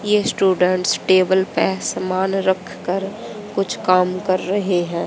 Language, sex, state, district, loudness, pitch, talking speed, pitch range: Hindi, female, Haryana, Jhajjar, -19 LUFS, 185 Hz, 140 wpm, 180-195 Hz